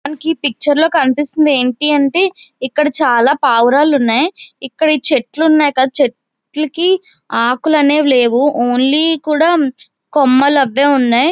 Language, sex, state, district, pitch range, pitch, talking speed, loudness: Telugu, female, Andhra Pradesh, Visakhapatnam, 260-310 Hz, 290 Hz, 125 wpm, -13 LUFS